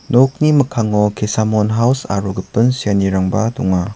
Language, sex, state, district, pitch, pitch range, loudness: Garo, male, Meghalaya, South Garo Hills, 110 Hz, 100-125 Hz, -16 LUFS